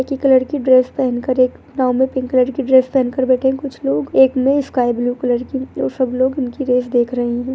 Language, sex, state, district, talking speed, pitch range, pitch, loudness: Hindi, female, Bihar, Begusarai, 260 wpm, 250-265 Hz, 260 Hz, -16 LUFS